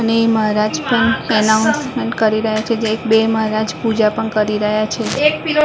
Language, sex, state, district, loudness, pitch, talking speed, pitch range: Gujarati, female, Maharashtra, Mumbai Suburban, -16 LUFS, 220 Hz, 170 wpm, 215-230 Hz